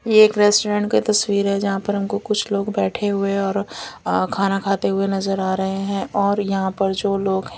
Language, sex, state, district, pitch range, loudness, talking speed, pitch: Hindi, female, Delhi, New Delhi, 195-205 Hz, -20 LUFS, 215 wpm, 200 Hz